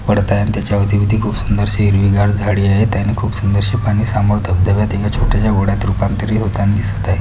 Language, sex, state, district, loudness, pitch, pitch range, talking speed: Marathi, female, Maharashtra, Pune, -15 LUFS, 100 Hz, 100-105 Hz, 190 wpm